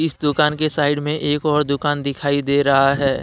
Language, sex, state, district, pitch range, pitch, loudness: Hindi, male, Jharkhand, Deoghar, 140-150 Hz, 145 Hz, -18 LUFS